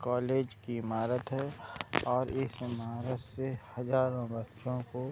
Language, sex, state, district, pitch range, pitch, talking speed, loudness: Hindi, male, Bihar, Madhepura, 120-130 Hz, 125 Hz, 140 wpm, -35 LUFS